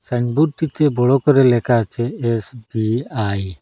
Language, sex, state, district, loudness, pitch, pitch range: Bengali, male, Assam, Hailakandi, -18 LUFS, 120 Hz, 115-135 Hz